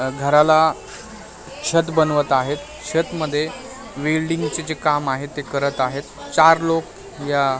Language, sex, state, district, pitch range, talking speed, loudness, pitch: Marathi, male, Maharashtra, Mumbai Suburban, 140-160 Hz, 135 wpm, -19 LUFS, 150 Hz